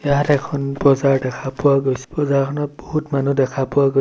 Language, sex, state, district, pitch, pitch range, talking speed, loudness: Assamese, male, Assam, Sonitpur, 140 Hz, 135-145 Hz, 180 wpm, -19 LUFS